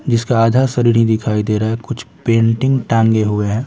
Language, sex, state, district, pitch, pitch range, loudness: Hindi, male, Bihar, Patna, 115 Hz, 110-120 Hz, -15 LUFS